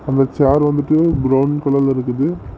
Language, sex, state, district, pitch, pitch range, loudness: Tamil, male, Tamil Nadu, Namakkal, 140 Hz, 135-150 Hz, -16 LUFS